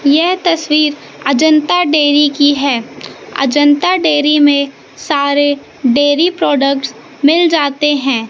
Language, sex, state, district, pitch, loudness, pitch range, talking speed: Hindi, female, Madhya Pradesh, Katni, 290 Hz, -12 LUFS, 280-315 Hz, 110 wpm